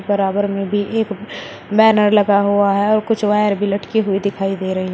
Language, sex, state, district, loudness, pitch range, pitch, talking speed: Hindi, female, Uttar Pradesh, Shamli, -16 LUFS, 200-210 Hz, 205 Hz, 220 wpm